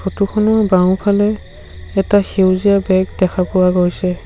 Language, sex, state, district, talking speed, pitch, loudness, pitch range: Assamese, male, Assam, Sonitpur, 125 wpm, 190 Hz, -15 LUFS, 180-200 Hz